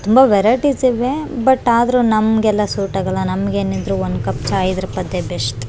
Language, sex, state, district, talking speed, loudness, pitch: Kannada, female, Karnataka, Raichur, 170 wpm, -16 LUFS, 205 Hz